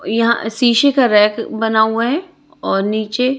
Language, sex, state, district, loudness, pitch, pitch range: Hindi, female, Chhattisgarh, Raipur, -15 LUFS, 230 Hz, 220-250 Hz